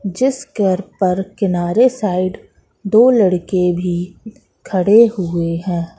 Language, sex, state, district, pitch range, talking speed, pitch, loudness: Hindi, female, Madhya Pradesh, Katni, 180-220 Hz, 110 wpm, 190 Hz, -16 LUFS